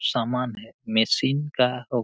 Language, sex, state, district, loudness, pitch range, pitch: Hindi, male, Jharkhand, Jamtara, -24 LUFS, 120-130 Hz, 125 Hz